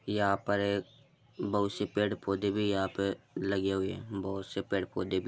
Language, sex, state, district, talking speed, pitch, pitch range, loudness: Hindi, male, Uttar Pradesh, Muzaffarnagar, 195 wpm, 100 Hz, 95-100 Hz, -33 LUFS